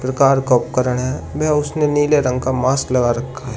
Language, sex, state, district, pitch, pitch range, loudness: Hindi, male, Uttar Pradesh, Shamli, 130 Hz, 125-145 Hz, -17 LUFS